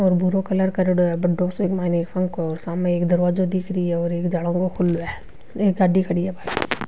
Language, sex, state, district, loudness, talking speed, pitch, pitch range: Marwari, female, Rajasthan, Nagaur, -21 LUFS, 225 wpm, 180 Hz, 175-185 Hz